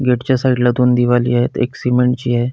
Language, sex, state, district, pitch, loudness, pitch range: Marathi, male, Maharashtra, Pune, 125 Hz, -15 LUFS, 120-125 Hz